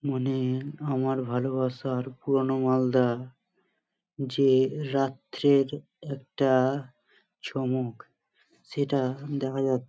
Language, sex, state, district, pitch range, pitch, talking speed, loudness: Bengali, male, West Bengal, Malda, 130-140 Hz, 135 Hz, 75 wpm, -27 LUFS